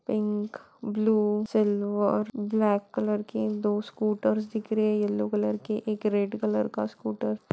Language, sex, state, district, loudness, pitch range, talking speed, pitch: Hindi, female, Bihar, Saran, -27 LUFS, 205-215 Hz, 160 wpm, 210 Hz